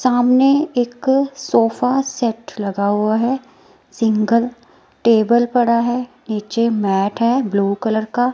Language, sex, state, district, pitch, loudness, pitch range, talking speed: Hindi, female, Himachal Pradesh, Shimla, 235 Hz, -17 LUFS, 220-250 Hz, 120 wpm